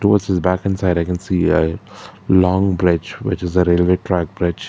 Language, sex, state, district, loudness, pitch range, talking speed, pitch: English, male, Karnataka, Bangalore, -17 LUFS, 90-95 Hz, 205 wpm, 90 Hz